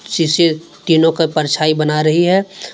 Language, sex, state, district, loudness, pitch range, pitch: Hindi, male, Jharkhand, Deoghar, -14 LUFS, 155-170 Hz, 165 Hz